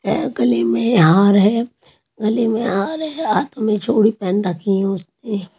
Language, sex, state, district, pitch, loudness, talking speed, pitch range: Hindi, female, Maharashtra, Mumbai Suburban, 205 Hz, -17 LUFS, 180 wpm, 190-230 Hz